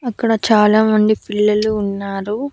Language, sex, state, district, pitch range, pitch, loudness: Telugu, female, Andhra Pradesh, Annamaya, 210-220 Hz, 215 Hz, -16 LUFS